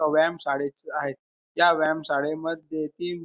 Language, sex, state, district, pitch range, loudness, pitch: Marathi, male, Maharashtra, Pune, 150-165 Hz, -26 LUFS, 155 Hz